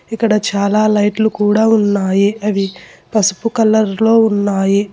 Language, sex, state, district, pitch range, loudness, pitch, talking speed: Telugu, female, Telangana, Hyderabad, 200-220 Hz, -14 LUFS, 210 Hz, 120 wpm